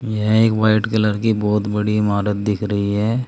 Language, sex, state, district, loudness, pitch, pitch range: Hindi, male, Uttar Pradesh, Saharanpur, -18 LUFS, 105 Hz, 105-110 Hz